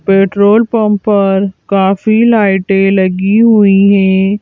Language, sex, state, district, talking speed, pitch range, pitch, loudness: Hindi, female, Madhya Pradesh, Bhopal, 110 wpm, 195-210 Hz, 200 Hz, -10 LUFS